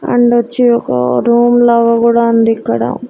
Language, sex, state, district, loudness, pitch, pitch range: Telugu, female, Andhra Pradesh, Annamaya, -11 LUFS, 235 Hz, 230-240 Hz